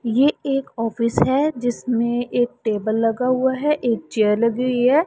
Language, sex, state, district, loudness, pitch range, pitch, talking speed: Hindi, female, Punjab, Pathankot, -20 LUFS, 230-260 Hz, 245 Hz, 175 wpm